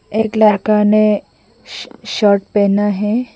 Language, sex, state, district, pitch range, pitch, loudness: Hindi, female, Mizoram, Aizawl, 205-215 Hz, 210 Hz, -14 LUFS